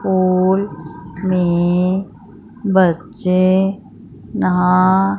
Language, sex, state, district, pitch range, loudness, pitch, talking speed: Hindi, female, Punjab, Fazilka, 180-190 Hz, -16 LUFS, 185 Hz, 45 wpm